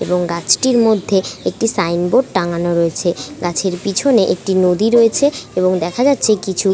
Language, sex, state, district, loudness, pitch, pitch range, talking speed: Bengali, female, West Bengal, Kolkata, -15 LUFS, 190 Hz, 175-225 Hz, 115 wpm